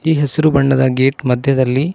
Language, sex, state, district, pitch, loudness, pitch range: Kannada, male, Karnataka, Koppal, 135 Hz, -14 LUFS, 130-150 Hz